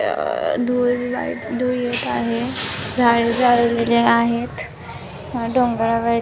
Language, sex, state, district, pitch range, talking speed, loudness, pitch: Marathi, female, Maharashtra, Nagpur, 235-245 Hz, 115 wpm, -19 LUFS, 235 Hz